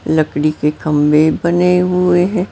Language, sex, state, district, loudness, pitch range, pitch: Hindi, female, Maharashtra, Mumbai Suburban, -14 LUFS, 150-180 Hz, 160 Hz